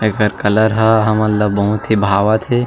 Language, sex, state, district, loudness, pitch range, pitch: Chhattisgarhi, male, Chhattisgarh, Sarguja, -14 LUFS, 105-110 Hz, 110 Hz